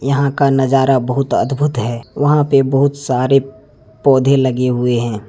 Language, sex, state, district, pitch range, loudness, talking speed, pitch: Hindi, male, Jharkhand, Deoghar, 125-140 Hz, -15 LUFS, 160 wpm, 135 Hz